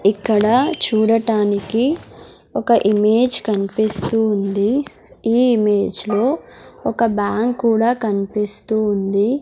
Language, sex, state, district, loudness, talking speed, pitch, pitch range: Telugu, female, Andhra Pradesh, Sri Satya Sai, -17 LUFS, 85 wpm, 220 Hz, 205-235 Hz